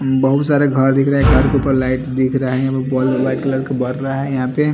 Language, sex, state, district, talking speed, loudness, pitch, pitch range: Hindi, male, Chandigarh, Chandigarh, 240 wpm, -16 LUFS, 135 Hz, 130-135 Hz